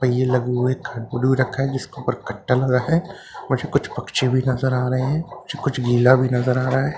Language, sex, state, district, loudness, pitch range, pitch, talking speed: Hindi, male, Bihar, Katihar, -21 LUFS, 125-135 Hz, 130 Hz, 250 wpm